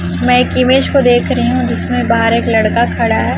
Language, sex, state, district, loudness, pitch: Hindi, female, Chhattisgarh, Raipur, -12 LUFS, 230 Hz